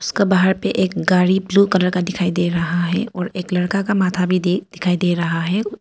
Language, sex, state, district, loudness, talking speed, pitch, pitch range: Hindi, female, Arunachal Pradesh, Papum Pare, -18 LUFS, 235 wpm, 180 Hz, 180-190 Hz